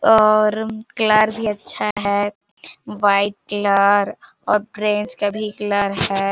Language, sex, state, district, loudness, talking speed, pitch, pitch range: Hindi, female, Chhattisgarh, Bilaspur, -18 LUFS, 125 wpm, 205 Hz, 200-215 Hz